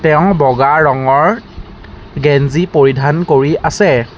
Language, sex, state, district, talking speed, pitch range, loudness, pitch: Assamese, male, Assam, Sonitpur, 100 wpm, 135-160 Hz, -11 LUFS, 145 Hz